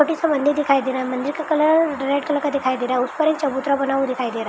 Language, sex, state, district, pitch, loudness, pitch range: Hindi, female, Bihar, Begusarai, 280 Hz, -20 LUFS, 260-300 Hz